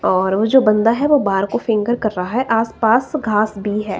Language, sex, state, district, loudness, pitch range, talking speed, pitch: Hindi, female, Himachal Pradesh, Shimla, -17 LUFS, 205-240 Hz, 240 wpm, 220 Hz